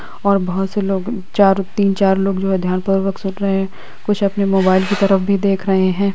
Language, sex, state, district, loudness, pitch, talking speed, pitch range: Hindi, female, Bihar, Lakhisarai, -17 LUFS, 195 Hz, 225 wpm, 190-200 Hz